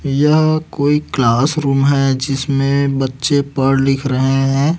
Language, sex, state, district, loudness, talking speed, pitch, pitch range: Hindi, male, Chhattisgarh, Raipur, -15 LUFS, 140 wpm, 135 Hz, 135-145 Hz